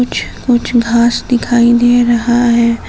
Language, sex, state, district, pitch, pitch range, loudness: Hindi, female, Jharkhand, Palamu, 240 Hz, 235-245 Hz, -11 LUFS